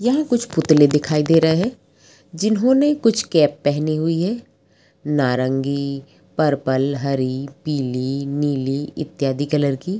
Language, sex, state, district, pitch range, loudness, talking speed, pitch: Hindi, female, Bihar, Madhepura, 140-165 Hz, -19 LUFS, 125 wpm, 150 Hz